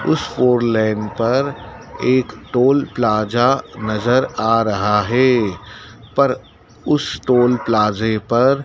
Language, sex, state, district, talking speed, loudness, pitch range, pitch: Hindi, male, Madhya Pradesh, Dhar, 120 wpm, -17 LUFS, 110-125 Hz, 115 Hz